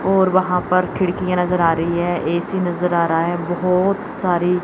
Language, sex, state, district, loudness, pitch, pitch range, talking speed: Hindi, female, Chandigarh, Chandigarh, -18 LUFS, 180 Hz, 175-185 Hz, 195 wpm